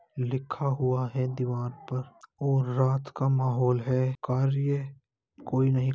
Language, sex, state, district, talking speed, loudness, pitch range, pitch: Hindi, male, Uttar Pradesh, Jalaun, 140 wpm, -28 LUFS, 130-135 Hz, 130 Hz